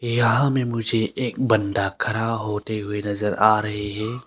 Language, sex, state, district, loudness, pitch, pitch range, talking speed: Hindi, male, Arunachal Pradesh, Longding, -22 LUFS, 110 Hz, 105-120 Hz, 170 wpm